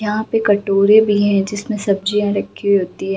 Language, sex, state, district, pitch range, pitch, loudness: Hindi, female, Bihar, Gaya, 200-210 Hz, 205 Hz, -16 LUFS